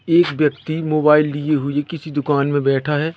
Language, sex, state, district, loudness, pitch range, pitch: Hindi, male, Madhya Pradesh, Katni, -18 LUFS, 145-155 Hz, 150 Hz